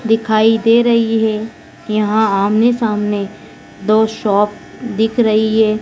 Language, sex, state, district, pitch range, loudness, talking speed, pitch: Hindi, female, Madhya Pradesh, Dhar, 215-225 Hz, -14 LUFS, 125 wpm, 220 Hz